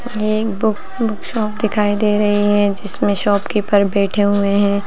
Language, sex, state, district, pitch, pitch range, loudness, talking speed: Hindi, female, Bihar, Lakhisarai, 205 Hz, 200-215 Hz, -16 LUFS, 160 wpm